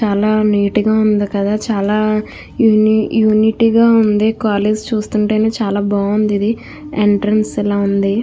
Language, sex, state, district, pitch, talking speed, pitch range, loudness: Telugu, female, Andhra Pradesh, Krishna, 215 Hz, 125 wpm, 205-220 Hz, -14 LUFS